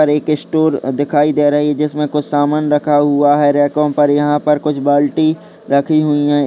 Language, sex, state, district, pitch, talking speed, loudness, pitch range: Hindi, male, Uttar Pradesh, Deoria, 150 Hz, 195 wpm, -14 LUFS, 145-150 Hz